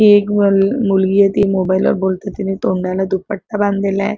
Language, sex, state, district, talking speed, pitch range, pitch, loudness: Marathi, female, Maharashtra, Chandrapur, 175 wpm, 190-205 Hz, 195 Hz, -15 LUFS